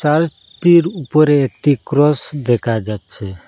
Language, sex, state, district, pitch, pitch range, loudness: Bengali, male, Assam, Hailakandi, 145 Hz, 115-155 Hz, -15 LUFS